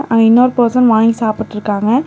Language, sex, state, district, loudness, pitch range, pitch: Tamil, female, Tamil Nadu, Nilgiris, -12 LUFS, 220-245 Hz, 230 Hz